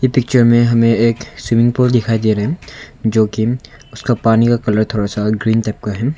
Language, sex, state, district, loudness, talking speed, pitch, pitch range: Hindi, male, Arunachal Pradesh, Longding, -15 LUFS, 205 wpm, 115 Hz, 110-120 Hz